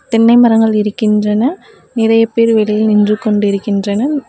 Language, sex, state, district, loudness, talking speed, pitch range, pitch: Tamil, female, Tamil Nadu, Namakkal, -12 LUFS, 110 wpm, 210-230 Hz, 220 Hz